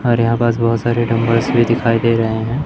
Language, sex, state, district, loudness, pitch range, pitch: Hindi, male, Madhya Pradesh, Umaria, -15 LUFS, 115-120 Hz, 115 Hz